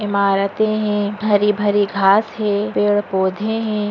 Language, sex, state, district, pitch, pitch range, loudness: Hindi, female, Chhattisgarh, Bastar, 205 Hz, 200-210 Hz, -17 LUFS